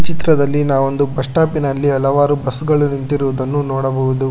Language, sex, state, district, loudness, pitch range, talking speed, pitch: Kannada, male, Karnataka, Bangalore, -16 LUFS, 135-145 Hz, 155 wpm, 140 Hz